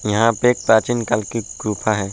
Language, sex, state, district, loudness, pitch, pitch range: Hindi, male, Uttar Pradesh, Budaun, -18 LUFS, 110 Hz, 105-115 Hz